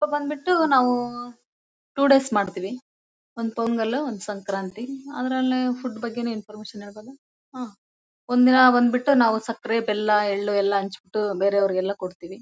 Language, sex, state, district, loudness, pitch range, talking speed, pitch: Kannada, female, Karnataka, Bellary, -23 LUFS, 205-255 Hz, 115 wpm, 230 Hz